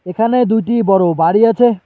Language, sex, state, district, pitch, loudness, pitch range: Bengali, male, West Bengal, Alipurduar, 220 Hz, -13 LUFS, 190-235 Hz